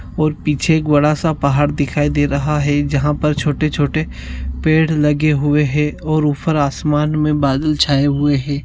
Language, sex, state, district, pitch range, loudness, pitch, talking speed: Hindi, male, Rajasthan, Nagaur, 145-155 Hz, -16 LUFS, 150 Hz, 175 wpm